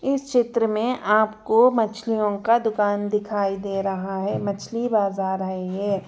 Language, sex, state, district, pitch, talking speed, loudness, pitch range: Hindi, female, Chhattisgarh, Jashpur, 210 Hz, 150 wpm, -22 LUFS, 195-230 Hz